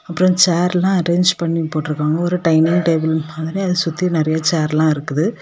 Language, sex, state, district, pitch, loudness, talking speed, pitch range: Tamil, female, Tamil Nadu, Kanyakumari, 165 Hz, -17 LUFS, 165 wpm, 155-180 Hz